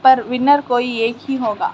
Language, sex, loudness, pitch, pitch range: Hindi, female, -17 LUFS, 250 Hz, 240-265 Hz